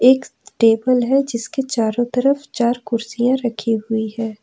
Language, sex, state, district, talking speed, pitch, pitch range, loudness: Hindi, female, Jharkhand, Ranchi, 150 wpm, 235 Hz, 225-255 Hz, -19 LUFS